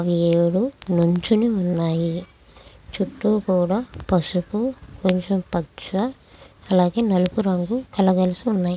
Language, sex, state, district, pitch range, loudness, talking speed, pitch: Telugu, female, Andhra Pradesh, Krishna, 175-215 Hz, -22 LUFS, 90 wpm, 185 Hz